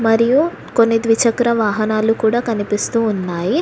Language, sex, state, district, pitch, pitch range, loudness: Telugu, female, Telangana, Hyderabad, 225 Hz, 215-235 Hz, -16 LUFS